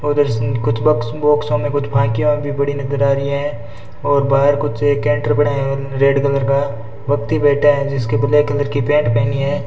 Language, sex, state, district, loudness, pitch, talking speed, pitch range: Hindi, male, Rajasthan, Bikaner, -16 LUFS, 140 Hz, 205 wpm, 115-145 Hz